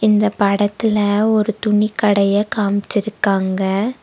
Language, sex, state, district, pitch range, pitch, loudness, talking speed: Tamil, female, Tamil Nadu, Nilgiris, 200-215 Hz, 210 Hz, -17 LUFS, 90 wpm